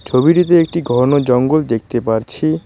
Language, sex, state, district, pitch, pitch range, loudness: Bengali, male, West Bengal, Cooch Behar, 135 Hz, 120-165 Hz, -14 LUFS